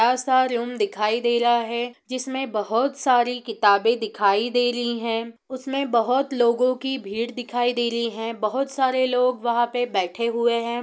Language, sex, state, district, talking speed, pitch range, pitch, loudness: Hindi, female, Bihar, East Champaran, 170 wpm, 230-255 Hz, 240 Hz, -22 LUFS